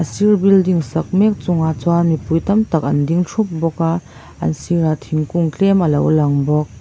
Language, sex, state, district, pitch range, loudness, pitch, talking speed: Mizo, female, Mizoram, Aizawl, 155-180 Hz, -16 LUFS, 165 Hz, 205 wpm